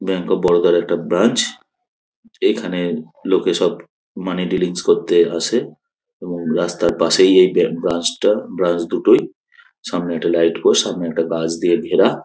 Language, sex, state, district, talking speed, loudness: Bengali, male, West Bengal, North 24 Parganas, 165 wpm, -17 LUFS